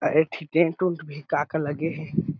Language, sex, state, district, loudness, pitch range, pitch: Chhattisgarhi, male, Chhattisgarh, Sarguja, -26 LUFS, 155-165 Hz, 160 Hz